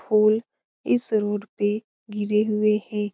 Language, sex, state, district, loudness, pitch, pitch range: Hindi, female, Bihar, Lakhisarai, -23 LUFS, 210 Hz, 210-215 Hz